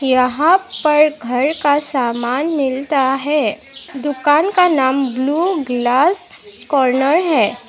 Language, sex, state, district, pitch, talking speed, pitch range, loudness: Hindi, female, Assam, Sonitpur, 285 Hz, 110 wpm, 260-315 Hz, -16 LUFS